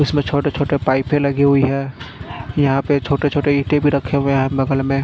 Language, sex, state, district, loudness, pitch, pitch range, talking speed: Hindi, male, Punjab, Fazilka, -17 LUFS, 140 Hz, 135-145 Hz, 215 wpm